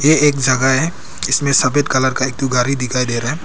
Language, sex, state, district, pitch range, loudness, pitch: Hindi, male, Arunachal Pradesh, Papum Pare, 130-145 Hz, -15 LUFS, 135 Hz